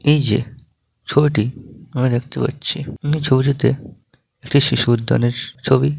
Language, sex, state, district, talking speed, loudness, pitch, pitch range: Bengali, male, West Bengal, Malda, 130 wpm, -18 LUFS, 130 Hz, 120-145 Hz